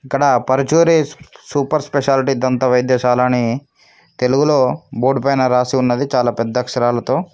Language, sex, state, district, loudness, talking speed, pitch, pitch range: Telugu, male, Telangana, Mahabubabad, -16 LUFS, 115 wpm, 130 Hz, 125-140 Hz